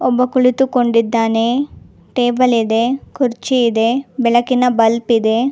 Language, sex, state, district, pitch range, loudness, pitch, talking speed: Kannada, female, Karnataka, Bangalore, 230-255 Hz, -15 LUFS, 245 Hz, 100 wpm